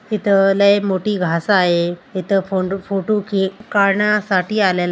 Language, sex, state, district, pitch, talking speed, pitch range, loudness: Marathi, female, Maharashtra, Aurangabad, 195 Hz, 135 wpm, 185-210 Hz, -17 LUFS